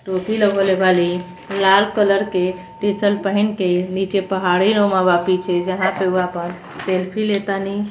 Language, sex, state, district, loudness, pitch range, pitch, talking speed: Bhojpuri, female, Uttar Pradesh, Gorakhpur, -18 LUFS, 180-200 Hz, 190 Hz, 160 wpm